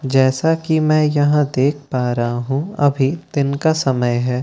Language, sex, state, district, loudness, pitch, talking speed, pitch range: Hindi, male, Bihar, Katihar, -17 LUFS, 140 Hz, 190 wpm, 130-155 Hz